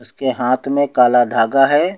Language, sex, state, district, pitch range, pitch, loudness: Hindi, male, Uttar Pradesh, Lucknow, 120-135 Hz, 130 Hz, -15 LUFS